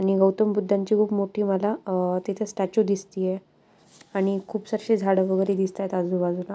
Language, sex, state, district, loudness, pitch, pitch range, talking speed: Marathi, female, Maharashtra, Aurangabad, -25 LUFS, 195 Hz, 190-205 Hz, 155 wpm